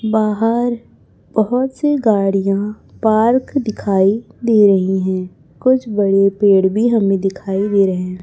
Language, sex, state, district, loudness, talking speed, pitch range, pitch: Hindi, male, Chhattisgarh, Raipur, -16 LUFS, 125 wpm, 195-230 Hz, 210 Hz